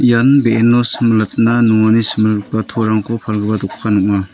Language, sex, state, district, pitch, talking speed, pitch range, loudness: Garo, male, Meghalaya, North Garo Hills, 110 Hz, 125 wpm, 105-115 Hz, -13 LUFS